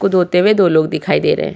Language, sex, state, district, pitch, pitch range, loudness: Hindi, female, Uttarakhand, Tehri Garhwal, 180 Hz, 160-195 Hz, -14 LUFS